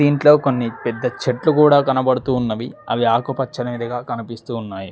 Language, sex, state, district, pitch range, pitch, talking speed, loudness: Telugu, male, Telangana, Mahabubabad, 120-135 Hz, 125 Hz, 135 wpm, -18 LUFS